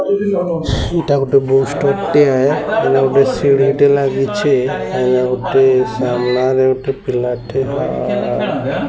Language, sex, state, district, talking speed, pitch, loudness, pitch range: Odia, male, Odisha, Sambalpur, 40 wpm, 135 Hz, -15 LUFS, 125-140 Hz